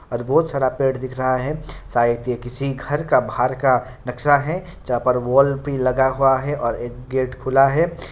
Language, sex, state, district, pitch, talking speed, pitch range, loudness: Hindi, male, Bihar, Kishanganj, 130 Hz, 205 wpm, 125-140 Hz, -20 LUFS